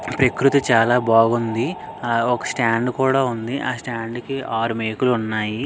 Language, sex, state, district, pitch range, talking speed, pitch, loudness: Telugu, male, Andhra Pradesh, Srikakulam, 115-125 Hz, 160 wpm, 115 Hz, -20 LUFS